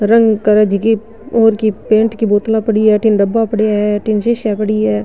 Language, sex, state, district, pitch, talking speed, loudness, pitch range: Marwari, female, Rajasthan, Nagaur, 215 Hz, 215 wpm, -13 LUFS, 210-225 Hz